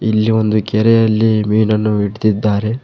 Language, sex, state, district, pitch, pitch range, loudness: Kannada, male, Karnataka, Koppal, 110 Hz, 105-110 Hz, -14 LUFS